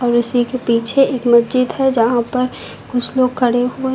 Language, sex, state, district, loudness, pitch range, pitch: Hindi, female, Uttar Pradesh, Lucknow, -16 LUFS, 240-255 Hz, 250 Hz